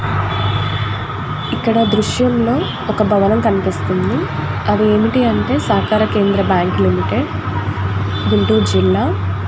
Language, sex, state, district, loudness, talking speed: Telugu, female, Andhra Pradesh, Guntur, -16 LUFS, 90 wpm